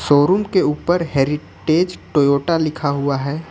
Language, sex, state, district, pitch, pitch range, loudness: Hindi, male, Jharkhand, Ranchi, 150 Hz, 140-170 Hz, -18 LUFS